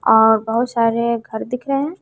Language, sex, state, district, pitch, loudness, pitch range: Hindi, female, Bihar, West Champaran, 235 Hz, -18 LUFS, 225-250 Hz